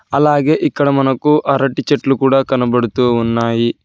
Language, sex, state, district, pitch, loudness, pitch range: Telugu, male, Telangana, Hyderabad, 135 Hz, -14 LUFS, 120-145 Hz